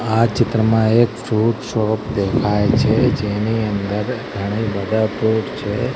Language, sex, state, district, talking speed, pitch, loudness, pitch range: Gujarati, male, Gujarat, Gandhinagar, 130 wpm, 110 Hz, -18 LUFS, 105-115 Hz